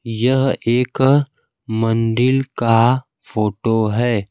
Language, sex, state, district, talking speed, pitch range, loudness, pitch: Hindi, male, Bihar, Kaimur, 85 wpm, 115-130 Hz, -17 LUFS, 120 Hz